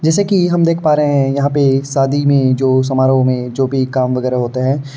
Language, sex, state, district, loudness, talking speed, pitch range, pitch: Hindi, male, Uttar Pradesh, Varanasi, -14 LUFS, 240 wpm, 130-145 Hz, 135 Hz